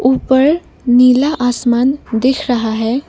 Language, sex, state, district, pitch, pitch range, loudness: Hindi, female, Assam, Kamrup Metropolitan, 255 Hz, 245-270 Hz, -13 LUFS